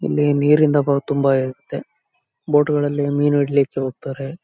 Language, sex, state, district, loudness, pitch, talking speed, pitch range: Kannada, male, Karnataka, Bellary, -18 LUFS, 145 Hz, 135 wpm, 135-145 Hz